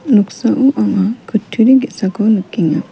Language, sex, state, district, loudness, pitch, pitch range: Garo, female, Meghalaya, West Garo Hills, -14 LUFS, 220 Hz, 205-250 Hz